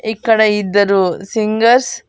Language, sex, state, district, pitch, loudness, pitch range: Telugu, female, Andhra Pradesh, Annamaya, 215 Hz, -13 LUFS, 205-225 Hz